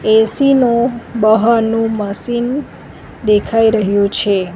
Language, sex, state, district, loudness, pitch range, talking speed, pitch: Gujarati, female, Gujarat, Valsad, -14 LUFS, 210-235 Hz, 90 wpm, 225 Hz